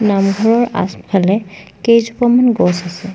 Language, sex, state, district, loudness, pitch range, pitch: Assamese, female, Assam, Sonitpur, -14 LUFS, 195-230 Hz, 200 Hz